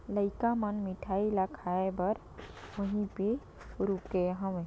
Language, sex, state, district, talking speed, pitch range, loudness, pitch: Hindi, female, Chhattisgarh, Sarguja, 130 wpm, 185-205 Hz, -33 LUFS, 195 Hz